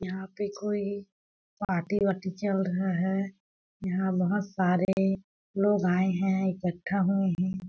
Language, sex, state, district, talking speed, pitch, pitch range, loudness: Hindi, female, Chhattisgarh, Balrampur, 130 wpm, 190 Hz, 185-200 Hz, -29 LUFS